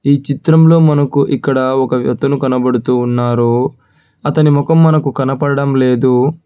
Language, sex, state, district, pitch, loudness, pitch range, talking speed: Telugu, male, Telangana, Hyderabad, 135 Hz, -12 LUFS, 125-145 Hz, 120 wpm